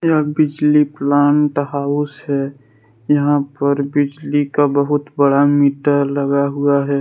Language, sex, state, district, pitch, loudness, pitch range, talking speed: Hindi, male, Jharkhand, Deoghar, 145 Hz, -16 LUFS, 140-145 Hz, 130 wpm